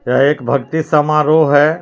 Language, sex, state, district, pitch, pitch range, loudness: Hindi, male, Jharkhand, Palamu, 150 Hz, 140-155 Hz, -13 LUFS